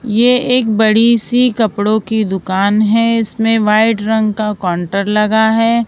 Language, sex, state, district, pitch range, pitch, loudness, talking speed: Hindi, female, Maharashtra, Mumbai Suburban, 210-230 Hz, 220 Hz, -13 LUFS, 155 wpm